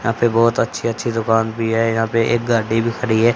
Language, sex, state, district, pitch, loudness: Hindi, male, Haryana, Charkhi Dadri, 115 Hz, -18 LUFS